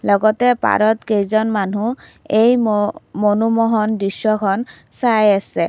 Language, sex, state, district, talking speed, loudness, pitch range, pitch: Assamese, female, Assam, Kamrup Metropolitan, 105 wpm, -17 LUFS, 205-230 Hz, 215 Hz